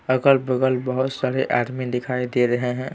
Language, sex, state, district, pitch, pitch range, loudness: Hindi, male, Bihar, Patna, 130 Hz, 125-130 Hz, -21 LUFS